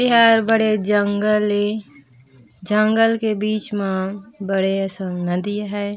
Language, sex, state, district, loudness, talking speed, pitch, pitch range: Chhattisgarhi, female, Chhattisgarh, Raigarh, -19 LUFS, 120 wpm, 205 Hz, 190-215 Hz